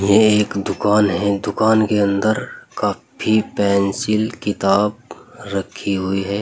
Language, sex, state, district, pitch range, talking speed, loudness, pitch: Hindi, male, Uttar Pradesh, Saharanpur, 100-110 Hz, 120 wpm, -18 LUFS, 105 Hz